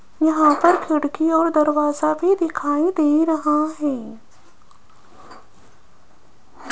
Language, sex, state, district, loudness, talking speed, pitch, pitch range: Hindi, female, Rajasthan, Jaipur, -19 LUFS, 90 wpm, 310 Hz, 295-320 Hz